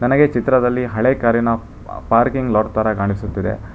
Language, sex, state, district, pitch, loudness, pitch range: Kannada, male, Karnataka, Bangalore, 115 Hz, -17 LUFS, 110-125 Hz